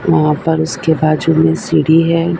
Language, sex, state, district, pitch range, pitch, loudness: Hindi, female, Maharashtra, Mumbai Suburban, 155-165 Hz, 160 Hz, -13 LUFS